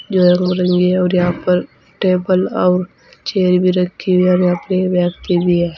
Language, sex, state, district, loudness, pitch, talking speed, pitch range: Hindi, female, Uttar Pradesh, Saharanpur, -15 LUFS, 180 Hz, 165 wpm, 180-185 Hz